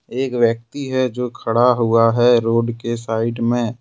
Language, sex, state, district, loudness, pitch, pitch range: Hindi, male, Jharkhand, Ranchi, -18 LUFS, 120 Hz, 115-125 Hz